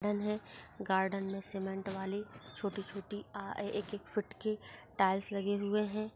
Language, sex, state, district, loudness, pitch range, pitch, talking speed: Hindi, female, Maharashtra, Chandrapur, -37 LUFS, 195-210 Hz, 200 Hz, 155 wpm